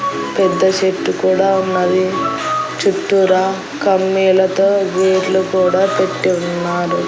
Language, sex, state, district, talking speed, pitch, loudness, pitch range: Telugu, female, Andhra Pradesh, Annamaya, 85 wpm, 190 Hz, -15 LUFS, 185-195 Hz